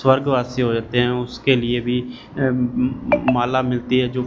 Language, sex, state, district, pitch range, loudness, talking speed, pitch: Hindi, male, Punjab, Fazilka, 120-130 Hz, -20 LUFS, 195 wpm, 125 Hz